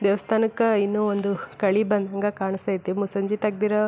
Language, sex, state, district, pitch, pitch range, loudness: Kannada, female, Karnataka, Belgaum, 205 Hz, 195-210 Hz, -24 LUFS